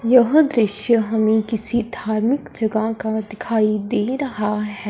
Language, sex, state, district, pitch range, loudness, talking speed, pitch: Hindi, female, Punjab, Fazilka, 215-235 Hz, -19 LUFS, 135 wpm, 220 Hz